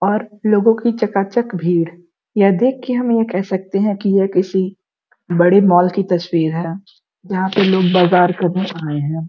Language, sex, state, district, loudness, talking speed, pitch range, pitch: Hindi, female, Uttar Pradesh, Gorakhpur, -16 LUFS, 180 wpm, 175-205 Hz, 190 Hz